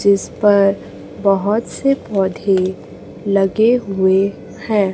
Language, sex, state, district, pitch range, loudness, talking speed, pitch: Hindi, female, Chhattisgarh, Raipur, 195-215 Hz, -16 LUFS, 95 wpm, 200 Hz